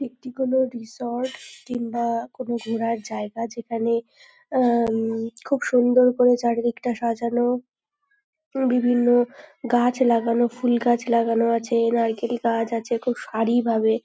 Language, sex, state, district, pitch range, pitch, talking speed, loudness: Bengali, female, West Bengal, North 24 Parganas, 230-250 Hz, 240 Hz, 120 wpm, -23 LUFS